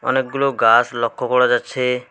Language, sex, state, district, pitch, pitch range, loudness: Bengali, male, West Bengal, Alipurduar, 125 Hz, 120-130 Hz, -17 LUFS